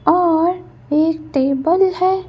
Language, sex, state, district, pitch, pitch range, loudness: Hindi, female, Madhya Pradesh, Bhopal, 330 Hz, 315-365 Hz, -17 LUFS